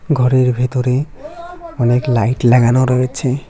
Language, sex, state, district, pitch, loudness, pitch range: Bengali, male, West Bengal, Cooch Behar, 125 Hz, -14 LUFS, 125-140 Hz